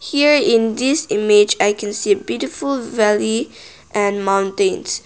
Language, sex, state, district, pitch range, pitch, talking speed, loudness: English, female, Nagaland, Kohima, 205-280 Hz, 220 Hz, 130 wpm, -17 LUFS